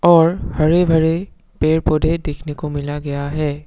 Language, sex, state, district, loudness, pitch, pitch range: Hindi, male, Assam, Sonitpur, -18 LUFS, 155 Hz, 150-165 Hz